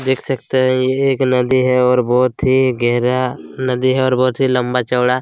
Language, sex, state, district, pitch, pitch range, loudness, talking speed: Hindi, male, Chhattisgarh, Kabirdham, 130 Hz, 125-130 Hz, -15 LUFS, 195 wpm